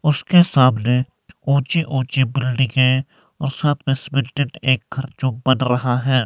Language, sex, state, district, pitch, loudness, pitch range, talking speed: Hindi, male, Himachal Pradesh, Shimla, 135 Hz, -18 LUFS, 130-145 Hz, 135 wpm